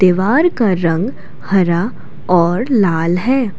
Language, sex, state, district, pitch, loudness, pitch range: Hindi, female, Assam, Kamrup Metropolitan, 185 Hz, -15 LUFS, 170-225 Hz